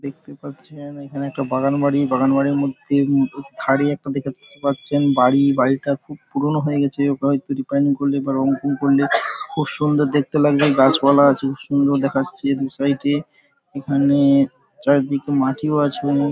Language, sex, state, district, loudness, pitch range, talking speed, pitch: Bengali, male, West Bengal, Paschim Medinipur, -19 LUFS, 135-145 Hz, 160 wpm, 140 Hz